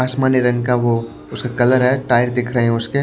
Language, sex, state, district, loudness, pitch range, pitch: Hindi, male, Maharashtra, Washim, -17 LUFS, 120-130 Hz, 125 Hz